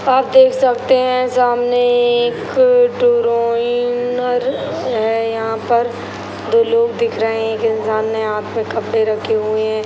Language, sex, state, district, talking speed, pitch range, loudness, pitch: Hindi, male, Bihar, Sitamarhi, 140 wpm, 225-260 Hz, -16 LUFS, 240 Hz